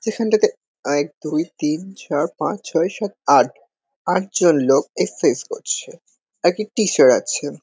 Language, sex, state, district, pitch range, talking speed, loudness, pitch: Bengali, male, West Bengal, Kolkata, 155-220 Hz, 125 wpm, -19 LUFS, 190 Hz